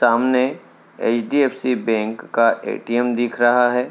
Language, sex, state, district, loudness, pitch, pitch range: Hindi, male, Uttar Pradesh, Hamirpur, -19 LUFS, 120 Hz, 115-125 Hz